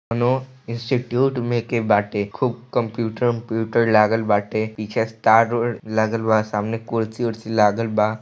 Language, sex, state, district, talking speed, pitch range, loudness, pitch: Bhojpuri, male, Bihar, East Champaran, 145 wpm, 110-120 Hz, -21 LUFS, 115 Hz